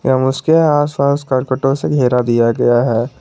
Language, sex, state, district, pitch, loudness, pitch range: Hindi, male, Jharkhand, Garhwa, 130 Hz, -14 LUFS, 125-140 Hz